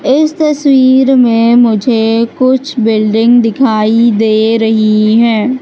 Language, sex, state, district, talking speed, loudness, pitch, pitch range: Hindi, female, Madhya Pradesh, Katni, 105 wpm, -9 LUFS, 230 Hz, 220-260 Hz